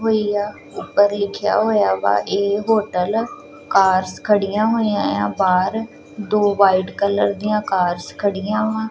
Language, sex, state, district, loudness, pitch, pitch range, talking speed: Punjabi, female, Punjab, Kapurthala, -18 LUFS, 205 Hz, 190-215 Hz, 140 wpm